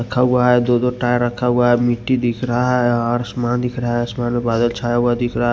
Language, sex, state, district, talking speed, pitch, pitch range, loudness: Hindi, male, Maharashtra, Washim, 270 wpm, 120 Hz, 120-125 Hz, -18 LUFS